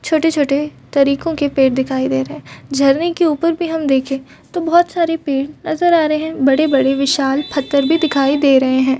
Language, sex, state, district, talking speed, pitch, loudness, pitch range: Hindi, female, Chhattisgarh, Bastar, 215 wpm, 285 Hz, -15 LUFS, 270-325 Hz